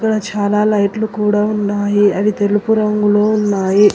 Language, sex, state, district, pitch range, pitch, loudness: Telugu, female, Telangana, Hyderabad, 205-210 Hz, 210 Hz, -15 LUFS